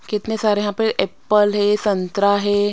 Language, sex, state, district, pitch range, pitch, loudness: Hindi, female, Maharashtra, Mumbai Suburban, 205-210 Hz, 205 Hz, -18 LUFS